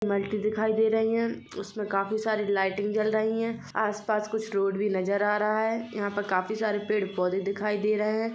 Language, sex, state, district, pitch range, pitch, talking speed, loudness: Hindi, female, Chhattisgarh, Rajnandgaon, 200-220 Hz, 210 Hz, 210 wpm, -28 LUFS